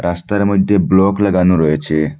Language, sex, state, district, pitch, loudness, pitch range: Bengali, male, Assam, Hailakandi, 90 Hz, -14 LUFS, 80-100 Hz